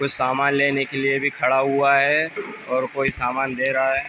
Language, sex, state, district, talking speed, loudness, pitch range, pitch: Hindi, male, Uttar Pradesh, Ghazipur, 220 wpm, -20 LUFS, 130-140 Hz, 135 Hz